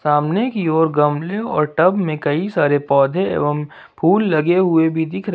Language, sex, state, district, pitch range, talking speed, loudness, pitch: Hindi, male, Jharkhand, Ranchi, 150-185 Hz, 190 wpm, -17 LUFS, 160 Hz